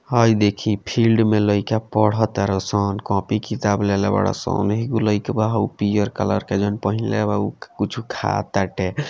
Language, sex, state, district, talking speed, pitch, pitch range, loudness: Bhojpuri, male, Bihar, Gopalganj, 160 wpm, 105 Hz, 100-110 Hz, -20 LUFS